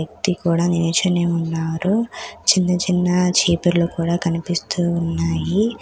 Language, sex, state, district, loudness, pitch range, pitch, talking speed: Telugu, female, Telangana, Hyderabad, -19 LUFS, 165-180 Hz, 175 Hz, 105 wpm